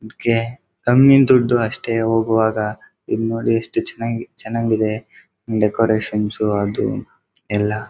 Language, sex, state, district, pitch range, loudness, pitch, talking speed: Kannada, male, Karnataka, Dakshina Kannada, 110-115 Hz, -18 LUFS, 110 Hz, 100 wpm